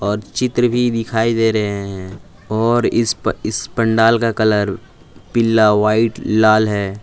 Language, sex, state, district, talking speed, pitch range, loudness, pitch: Hindi, male, Jharkhand, Palamu, 145 wpm, 105-115 Hz, -16 LUFS, 110 Hz